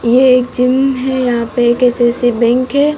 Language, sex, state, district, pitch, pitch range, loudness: Hindi, female, Uttar Pradesh, Lucknow, 250 Hz, 240-260 Hz, -12 LUFS